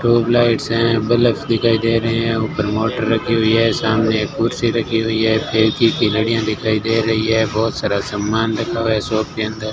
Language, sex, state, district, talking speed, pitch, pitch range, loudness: Hindi, male, Rajasthan, Bikaner, 215 wpm, 115 Hz, 110-115 Hz, -17 LUFS